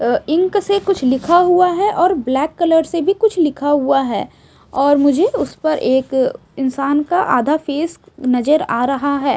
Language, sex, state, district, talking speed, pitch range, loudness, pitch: Hindi, female, Odisha, Sambalpur, 175 wpm, 275-355 Hz, -16 LUFS, 300 Hz